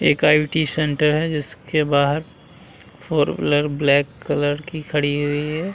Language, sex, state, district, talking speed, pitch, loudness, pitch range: Hindi, male, Uttar Pradesh, Muzaffarnagar, 165 wpm, 150 Hz, -20 LUFS, 145-155 Hz